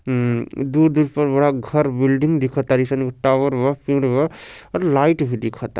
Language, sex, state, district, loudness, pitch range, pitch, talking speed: Bhojpuri, male, Bihar, Gopalganj, -19 LUFS, 130-145 Hz, 135 Hz, 155 wpm